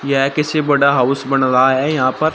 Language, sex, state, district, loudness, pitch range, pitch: Hindi, male, Uttar Pradesh, Shamli, -15 LUFS, 130-150 Hz, 140 Hz